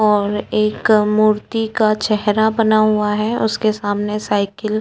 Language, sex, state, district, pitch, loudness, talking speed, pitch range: Hindi, female, Uttarakhand, Tehri Garhwal, 215 Hz, -17 LUFS, 160 wpm, 210-215 Hz